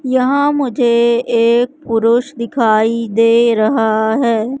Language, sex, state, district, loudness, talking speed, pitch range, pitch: Hindi, female, Madhya Pradesh, Katni, -14 LUFS, 105 wpm, 225-255 Hz, 235 Hz